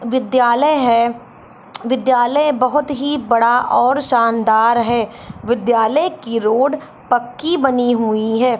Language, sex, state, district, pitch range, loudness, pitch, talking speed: Hindi, female, Bihar, Saharsa, 235-275 Hz, -16 LUFS, 245 Hz, 110 wpm